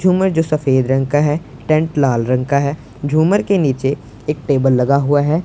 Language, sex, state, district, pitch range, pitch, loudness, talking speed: Hindi, male, Punjab, Pathankot, 135-155 Hz, 145 Hz, -16 LUFS, 210 wpm